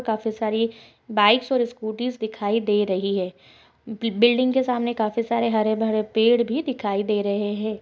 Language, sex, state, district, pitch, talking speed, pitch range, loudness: Hindi, female, Maharashtra, Pune, 220 Hz, 160 wpm, 210-235 Hz, -22 LUFS